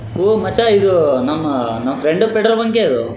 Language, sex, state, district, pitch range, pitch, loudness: Kannada, male, Karnataka, Raichur, 135-225 Hz, 205 Hz, -15 LUFS